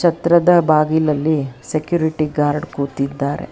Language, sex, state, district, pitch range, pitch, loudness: Kannada, female, Karnataka, Bangalore, 145-165 Hz, 155 Hz, -17 LUFS